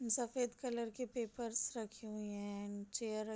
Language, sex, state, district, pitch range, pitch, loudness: Hindi, female, Bihar, Sitamarhi, 210-240 Hz, 225 Hz, -42 LUFS